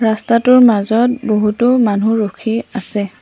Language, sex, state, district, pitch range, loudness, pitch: Assamese, female, Assam, Sonitpur, 210-240 Hz, -14 LUFS, 225 Hz